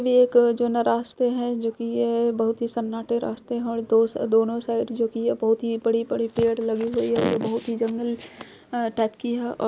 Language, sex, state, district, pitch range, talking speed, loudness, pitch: Hindi, female, Bihar, Purnia, 225-235 Hz, 225 wpm, -24 LUFS, 230 Hz